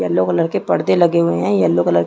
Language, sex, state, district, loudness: Hindi, female, Chhattisgarh, Rajnandgaon, -16 LUFS